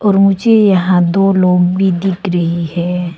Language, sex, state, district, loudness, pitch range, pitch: Hindi, female, Arunachal Pradesh, Longding, -12 LUFS, 175-195 Hz, 185 Hz